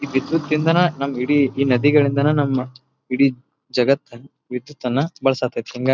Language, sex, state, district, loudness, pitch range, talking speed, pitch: Kannada, male, Karnataka, Belgaum, -19 LUFS, 125-145 Hz, 140 wpm, 140 Hz